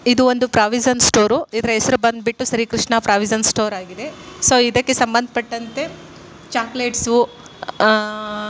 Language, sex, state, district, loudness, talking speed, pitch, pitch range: Kannada, female, Karnataka, Shimoga, -17 LUFS, 115 wpm, 235 Hz, 220-245 Hz